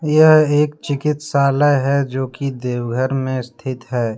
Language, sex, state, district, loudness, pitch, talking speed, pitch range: Hindi, male, Jharkhand, Deoghar, -17 LUFS, 135 Hz, 145 wpm, 130-150 Hz